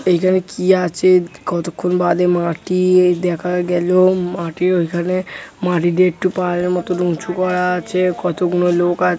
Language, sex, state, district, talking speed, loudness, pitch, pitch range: Bengali, male, West Bengal, Jhargram, 150 wpm, -17 LUFS, 180 Hz, 175-185 Hz